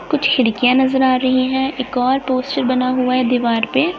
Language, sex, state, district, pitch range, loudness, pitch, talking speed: Hindi, female, Bihar, Darbhanga, 255-265 Hz, -16 LUFS, 255 Hz, 210 wpm